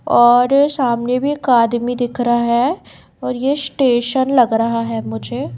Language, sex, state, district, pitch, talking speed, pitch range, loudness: Hindi, female, Bihar, Katihar, 245 Hz, 160 wpm, 235-265 Hz, -16 LUFS